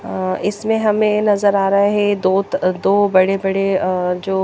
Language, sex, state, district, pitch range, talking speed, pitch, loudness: Hindi, female, Chandigarh, Chandigarh, 190-205 Hz, 215 wpm, 195 Hz, -16 LUFS